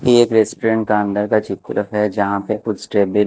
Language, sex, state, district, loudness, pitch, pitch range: Hindi, male, Maharashtra, Mumbai Suburban, -18 LUFS, 105 Hz, 105-110 Hz